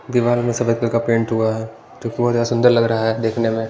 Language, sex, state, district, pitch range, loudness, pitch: Hindi, male, Punjab, Pathankot, 115-120 Hz, -18 LUFS, 115 Hz